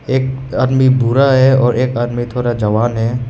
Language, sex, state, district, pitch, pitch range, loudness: Hindi, male, Meghalaya, West Garo Hills, 125 Hz, 120-130 Hz, -14 LUFS